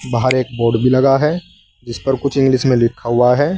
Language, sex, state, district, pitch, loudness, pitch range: Hindi, male, Uttar Pradesh, Saharanpur, 130 Hz, -15 LUFS, 120-135 Hz